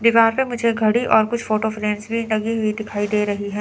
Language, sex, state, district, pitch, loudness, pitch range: Hindi, female, Chandigarh, Chandigarh, 220 Hz, -20 LUFS, 210-230 Hz